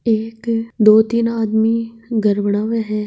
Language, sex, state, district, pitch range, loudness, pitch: Marwari, male, Rajasthan, Nagaur, 215-230 Hz, -17 LUFS, 225 Hz